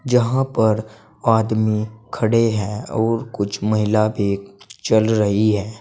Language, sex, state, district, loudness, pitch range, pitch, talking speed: Hindi, male, Uttar Pradesh, Saharanpur, -19 LUFS, 105-115 Hz, 110 Hz, 125 wpm